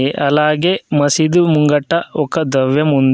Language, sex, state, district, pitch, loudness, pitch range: Telugu, male, Telangana, Adilabad, 150 Hz, -14 LUFS, 140-160 Hz